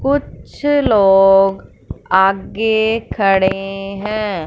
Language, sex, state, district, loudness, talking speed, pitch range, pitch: Hindi, female, Punjab, Fazilka, -15 LUFS, 65 wpm, 195-220 Hz, 195 Hz